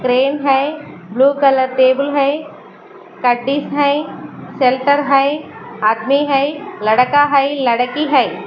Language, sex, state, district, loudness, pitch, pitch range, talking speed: Hindi, female, Maharashtra, Mumbai Suburban, -15 LUFS, 275 Hz, 255-285 Hz, 105 wpm